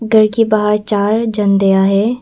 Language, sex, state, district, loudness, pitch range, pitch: Hindi, female, Arunachal Pradesh, Papum Pare, -13 LUFS, 200-220 Hz, 210 Hz